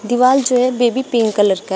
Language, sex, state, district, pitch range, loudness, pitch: Hindi, female, Uttar Pradesh, Shamli, 215-255 Hz, -15 LUFS, 240 Hz